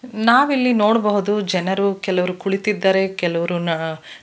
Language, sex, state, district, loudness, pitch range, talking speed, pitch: Kannada, female, Karnataka, Bangalore, -19 LUFS, 180-210 Hz, 100 wpm, 195 Hz